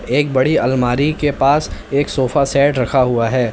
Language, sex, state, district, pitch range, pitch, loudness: Hindi, male, Uttar Pradesh, Lalitpur, 130-145 Hz, 135 Hz, -16 LUFS